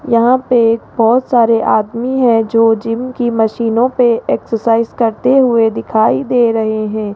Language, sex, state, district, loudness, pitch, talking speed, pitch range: Hindi, female, Rajasthan, Jaipur, -13 LUFS, 230 Hz, 150 wpm, 225-245 Hz